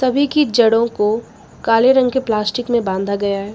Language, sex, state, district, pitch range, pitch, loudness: Hindi, female, Uttar Pradesh, Lucknow, 210-255 Hz, 230 Hz, -16 LUFS